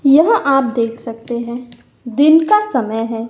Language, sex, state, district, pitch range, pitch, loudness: Hindi, female, Madhya Pradesh, Umaria, 230-285 Hz, 245 Hz, -15 LUFS